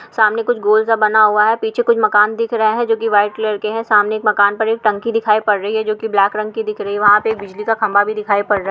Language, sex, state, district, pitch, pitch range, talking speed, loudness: Hindi, female, Rajasthan, Churu, 215 Hz, 210-220 Hz, 315 wpm, -15 LUFS